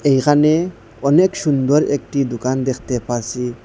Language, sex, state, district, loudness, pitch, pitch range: Bengali, male, Assam, Hailakandi, -17 LUFS, 135 Hz, 125-145 Hz